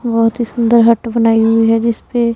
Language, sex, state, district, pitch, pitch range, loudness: Hindi, female, Punjab, Pathankot, 230 Hz, 225-235 Hz, -13 LUFS